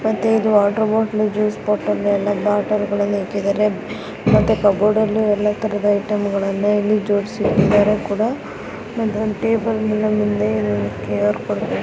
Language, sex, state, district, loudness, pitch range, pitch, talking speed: Kannada, female, Karnataka, Bijapur, -18 LUFS, 200-215 Hz, 210 Hz, 90 wpm